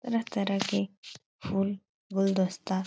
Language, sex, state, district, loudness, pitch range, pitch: Hindi, female, Uttar Pradesh, Etah, -30 LUFS, 195-200 Hz, 195 Hz